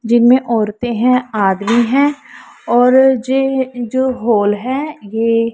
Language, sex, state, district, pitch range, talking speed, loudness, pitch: Hindi, female, Punjab, Pathankot, 230-260 Hz, 120 wpm, -14 LUFS, 240 Hz